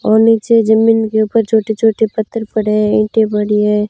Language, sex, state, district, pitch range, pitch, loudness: Hindi, female, Rajasthan, Bikaner, 215-225 Hz, 220 Hz, -13 LUFS